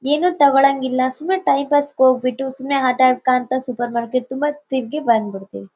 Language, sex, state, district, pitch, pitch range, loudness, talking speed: Kannada, female, Karnataka, Bellary, 260 Hz, 255-280 Hz, -18 LUFS, 135 wpm